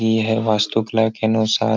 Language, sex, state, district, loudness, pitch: Hindi, male, Bihar, Jahanabad, -19 LUFS, 110 Hz